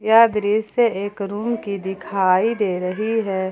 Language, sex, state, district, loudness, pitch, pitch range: Hindi, female, Jharkhand, Palamu, -20 LUFS, 205 Hz, 190-220 Hz